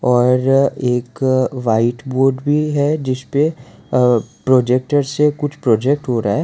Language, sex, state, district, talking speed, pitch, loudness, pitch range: Hindi, male, Gujarat, Valsad, 140 wpm, 130 Hz, -16 LUFS, 125-145 Hz